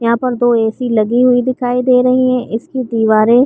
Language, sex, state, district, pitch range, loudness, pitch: Hindi, female, Chhattisgarh, Bilaspur, 230-255 Hz, -13 LUFS, 245 Hz